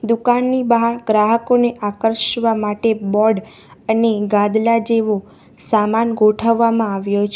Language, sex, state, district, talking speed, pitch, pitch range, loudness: Gujarati, female, Gujarat, Valsad, 105 wpm, 225 Hz, 210-230 Hz, -16 LUFS